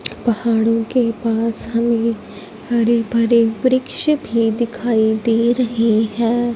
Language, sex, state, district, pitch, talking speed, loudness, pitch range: Hindi, female, Punjab, Fazilka, 230 Hz, 110 wpm, -17 LUFS, 225-235 Hz